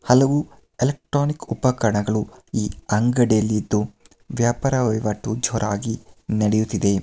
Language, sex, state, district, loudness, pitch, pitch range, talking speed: Kannada, male, Karnataka, Mysore, -22 LUFS, 110 Hz, 105-125 Hz, 75 wpm